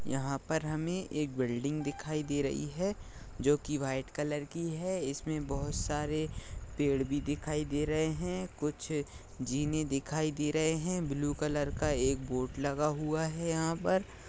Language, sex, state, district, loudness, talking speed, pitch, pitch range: Hindi, male, Maharashtra, Dhule, -34 LUFS, 170 wpm, 150 Hz, 140-155 Hz